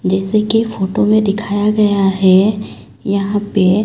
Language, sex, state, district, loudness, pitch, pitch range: Hindi, female, Chhattisgarh, Raipur, -14 LUFS, 205 Hz, 195-210 Hz